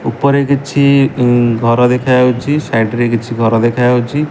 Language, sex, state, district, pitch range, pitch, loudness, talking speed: Odia, male, Odisha, Malkangiri, 115-140 Hz, 125 Hz, -12 LUFS, 140 wpm